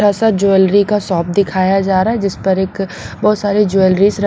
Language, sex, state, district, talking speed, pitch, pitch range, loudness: Hindi, female, Punjab, Pathankot, 195 wpm, 195 Hz, 190-205 Hz, -14 LUFS